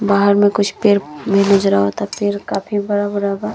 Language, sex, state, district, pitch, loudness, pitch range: Bhojpuri, female, Uttar Pradesh, Deoria, 200 Hz, -16 LUFS, 200-205 Hz